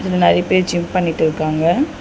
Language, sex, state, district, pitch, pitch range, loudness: Tamil, female, Tamil Nadu, Chennai, 170 Hz, 155-185 Hz, -16 LUFS